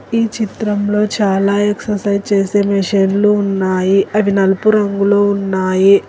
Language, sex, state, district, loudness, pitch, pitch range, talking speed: Telugu, female, Telangana, Hyderabad, -14 LUFS, 200 Hz, 195-210 Hz, 110 wpm